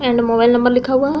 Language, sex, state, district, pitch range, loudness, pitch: Hindi, female, Uttar Pradesh, Deoria, 240-260 Hz, -15 LUFS, 245 Hz